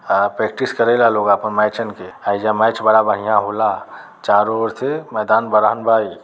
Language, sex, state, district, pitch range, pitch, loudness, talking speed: Bhojpuri, male, Uttar Pradesh, Deoria, 105-115 Hz, 110 Hz, -17 LUFS, 190 wpm